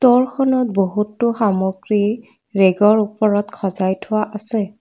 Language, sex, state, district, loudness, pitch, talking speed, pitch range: Assamese, female, Assam, Kamrup Metropolitan, -18 LUFS, 210 Hz, 100 wpm, 195-225 Hz